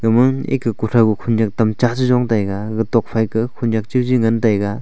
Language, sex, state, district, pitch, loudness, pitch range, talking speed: Wancho, male, Arunachal Pradesh, Longding, 115 Hz, -17 LUFS, 110-120 Hz, 160 wpm